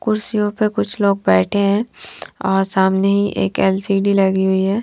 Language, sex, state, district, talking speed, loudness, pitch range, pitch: Hindi, female, Punjab, Fazilka, 160 wpm, -17 LUFS, 190-210 Hz, 195 Hz